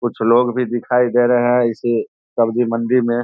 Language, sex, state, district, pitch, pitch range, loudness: Hindi, male, Bihar, Saharsa, 120 Hz, 115-125 Hz, -17 LUFS